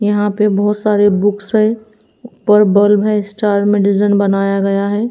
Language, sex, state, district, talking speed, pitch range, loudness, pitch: Hindi, female, Haryana, Rohtak, 175 wpm, 200-210 Hz, -13 LUFS, 205 Hz